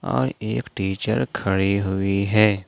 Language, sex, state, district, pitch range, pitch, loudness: Hindi, male, Jharkhand, Ranchi, 95-105 Hz, 100 Hz, -22 LUFS